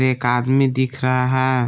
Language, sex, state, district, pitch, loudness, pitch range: Hindi, male, Jharkhand, Palamu, 130 Hz, -18 LUFS, 125-130 Hz